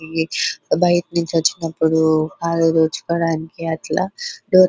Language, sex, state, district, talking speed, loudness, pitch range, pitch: Telugu, female, Telangana, Nalgonda, 90 wpm, -19 LUFS, 160-170 Hz, 165 Hz